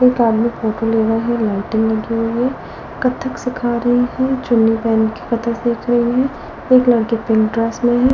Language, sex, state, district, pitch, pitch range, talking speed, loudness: Hindi, female, Delhi, New Delhi, 235 Hz, 225-245 Hz, 200 wpm, -17 LUFS